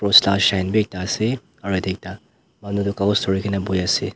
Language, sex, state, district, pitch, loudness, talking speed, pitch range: Nagamese, male, Nagaland, Dimapur, 100 Hz, -20 LUFS, 200 wpm, 95-100 Hz